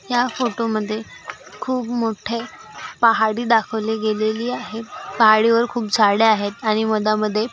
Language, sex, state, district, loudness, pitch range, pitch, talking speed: Marathi, female, Maharashtra, Aurangabad, -19 LUFS, 215-235 Hz, 220 Hz, 135 wpm